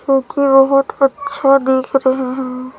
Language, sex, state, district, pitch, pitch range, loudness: Hindi, female, Chhattisgarh, Raipur, 270 Hz, 260-275 Hz, -14 LUFS